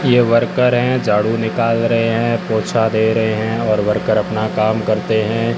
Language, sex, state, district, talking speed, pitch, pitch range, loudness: Hindi, male, Rajasthan, Barmer, 185 wpm, 115 Hz, 110-115 Hz, -16 LUFS